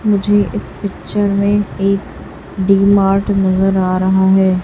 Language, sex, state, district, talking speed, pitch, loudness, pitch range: Hindi, female, Chhattisgarh, Raipur, 140 wpm, 195 Hz, -14 LUFS, 190-200 Hz